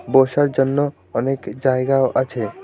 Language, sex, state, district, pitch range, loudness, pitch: Bengali, male, West Bengal, Alipurduar, 130-140 Hz, -19 LUFS, 135 Hz